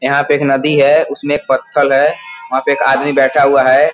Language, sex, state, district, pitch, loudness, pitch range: Hindi, male, Uttar Pradesh, Gorakhpur, 140 Hz, -12 LUFS, 130-145 Hz